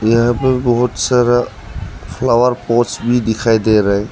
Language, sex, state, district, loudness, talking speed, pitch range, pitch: Hindi, male, Arunachal Pradesh, Lower Dibang Valley, -14 LUFS, 160 wpm, 105-120 Hz, 115 Hz